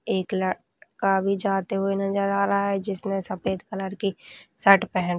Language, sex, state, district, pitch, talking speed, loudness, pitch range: Hindi, female, Rajasthan, Nagaur, 195 Hz, 185 wpm, -24 LUFS, 190-200 Hz